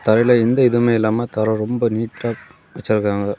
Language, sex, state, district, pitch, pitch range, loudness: Tamil, male, Tamil Nadu, Kanyakumari, 115 Hz, 110-120 Hz, -18 LUFS